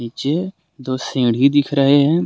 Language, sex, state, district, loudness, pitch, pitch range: Hindi, male, Jharkhand, Deoghar, -17 LUFS, 140 Hz, 130-155 Hz